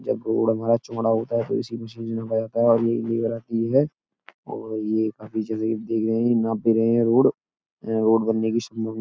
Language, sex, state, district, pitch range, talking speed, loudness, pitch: Hindi, male, Uttar Pradesh, Etah, 110-115 Hz, 240 wpm, -23 LUFS, 115 Hz